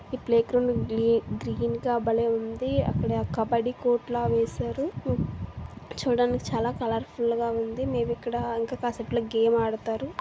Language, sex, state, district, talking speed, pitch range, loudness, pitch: Telugu, female, Andhra Pradesh, Visakhapatnam, 105 wpm, 225-240 Hz, -27 LUFS, 230 Hz